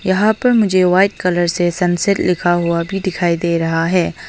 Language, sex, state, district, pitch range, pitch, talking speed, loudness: Hindi, female, Arunachal Pradesh, Longding, 175-195 Hz, 180 Hz, 195 wpm, -15 LUFS